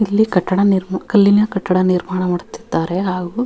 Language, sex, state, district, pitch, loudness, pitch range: Kannada, female, Karnataka, Dharwad, 185 Hz, -16 LUFS, 180-200 Hz